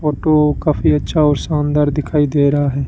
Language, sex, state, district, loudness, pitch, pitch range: Hindi, male, Rajasthan, Bikaner, -15 LUFS, 150 Hz, 145-150 Hz